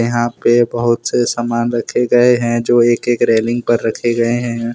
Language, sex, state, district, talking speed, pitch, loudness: Hindi, male, Jharkhand, Deoghar, 190 wpm, 120 Hz, -15 LUFS